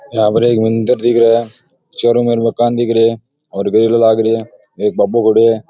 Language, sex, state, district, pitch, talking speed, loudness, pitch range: Rajasthani, male, Rajasthan, Nagaur, 115 Hz, 230 wpm, -13 LUFS, 110-120 Hz